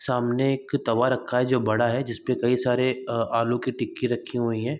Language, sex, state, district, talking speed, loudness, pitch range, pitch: Hindi, male, Uttar Pradesh, Gorakhpur, 215 wpm, -25 LUFS, 115-130 Hz, 125 Hz